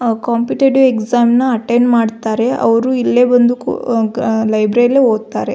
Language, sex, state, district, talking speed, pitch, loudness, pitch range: Kannada, female, Karnataka, Belgaum, 150 wpm, 240 Hz, -13 LUFS, 225-245 Hz